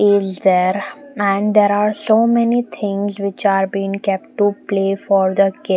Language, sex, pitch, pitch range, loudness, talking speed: English, female, 200 Hz, 195-205 Hz, -17 LUFS, 175 wpm